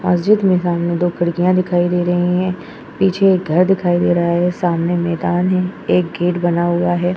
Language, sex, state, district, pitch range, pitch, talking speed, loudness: Hindi, female, Uttar Pradesh, Etah, 175-180 Hz, 175 Hz, 200 wpm, -16 LUFS